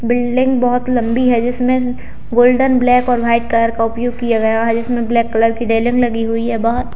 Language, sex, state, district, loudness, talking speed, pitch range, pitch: Hindi, female, Bihar, Gaya, -15 LUFS, 205 wpm, 230-245 Hz, 240 Hz